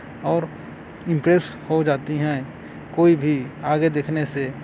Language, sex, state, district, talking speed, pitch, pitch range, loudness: Hindi, male, Chhattisgarh, Korba, 115 wpm, 150 Hz, 140-160 Hz, -21 LUFS